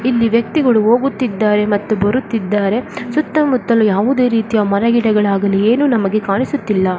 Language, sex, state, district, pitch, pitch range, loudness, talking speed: Kannada, female, Karnataka, Dakshina Kannada, 225 Hz, 205-250 Hz, -15 LUFS, 110 wpm